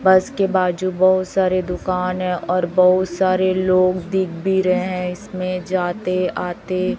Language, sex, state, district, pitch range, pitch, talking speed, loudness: Hindi, female, Chhattisgarh, Raipur, 180-185 Hz, 185 Hz, 155 wpm, -19 LUFS